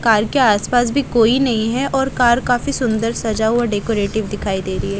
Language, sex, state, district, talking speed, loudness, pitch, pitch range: Hindi, female, Haryana, Jhajjar, 230 wpm, -17 LUFS, 230 Hz, 220-250 Hz